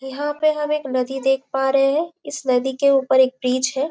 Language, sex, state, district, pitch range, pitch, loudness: Hindi, female, Chhattisgarh, Bastar, 265-290 Hz, 270 Hz, -20 LUFS